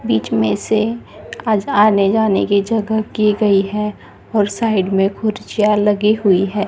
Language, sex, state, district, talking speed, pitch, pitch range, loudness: Hindi, female, Maharashtra, Gondia, 160 wpm, 210 Hz, 195-215 Hz, -16 LUFS